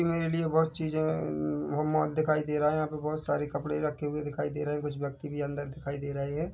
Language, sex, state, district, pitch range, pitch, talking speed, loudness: Hindi, male, Chhattisgarh, Bilaspur, 145-155 Hz, 150 Hz, 255 wpm, -31 LUFS